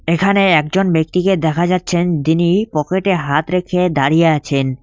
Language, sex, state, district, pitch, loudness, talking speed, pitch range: Bengali, male, West Bengal, Cooch Behar, 175 Hz, -15 LUFS, 135 wpm, 155-185 Hz